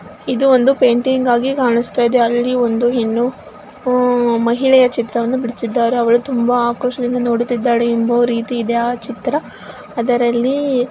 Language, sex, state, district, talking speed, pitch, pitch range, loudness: Kannada, male, Karnataka, Mysore, 125 wpm, 245 Hz, 235-255 Hz, -15 LUFS